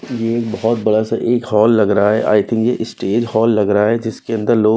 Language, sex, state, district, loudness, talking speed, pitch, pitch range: Hindi, male, Bihar, West Champaran, -15 LUFS, 265 wpm, 110 Hz, 110-115 Hz